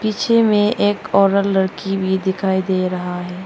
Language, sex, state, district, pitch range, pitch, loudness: Hindi, female, Arunachal Pradesh, Longding, 190-205 Hz, 195 Hz, -17 LUFS